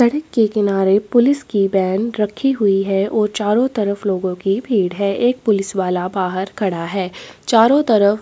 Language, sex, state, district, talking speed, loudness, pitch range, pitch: Hindi, female, Chhattisgarh, Korba, 175 wpm, -17 LUFS, 195-225 Hz, 205 Hz